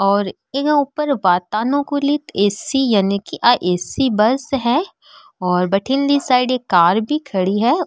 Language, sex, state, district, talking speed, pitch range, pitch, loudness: Marwari, female, Rajasthan, Nagaur, 175 wpm, 195-280 Hz, 240 Hz, -17 LUFS